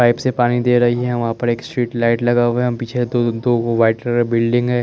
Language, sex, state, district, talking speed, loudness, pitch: Hindi, male, Chandigarh, Chandigarh, 275 wpm, -17 LUFS, 120 Hz